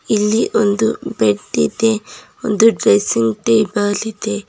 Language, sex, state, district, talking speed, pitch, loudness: Kannada, female, Karnataka, Bidar, 105 wpm, 210 Hz, -16 LUFS